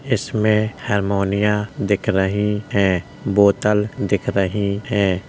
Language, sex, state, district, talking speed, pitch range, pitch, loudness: Hindi, male, Uttar Pradesh, Jalaun, 100 wpm, 100-105 Hz, 105 Hz, -19 LUFS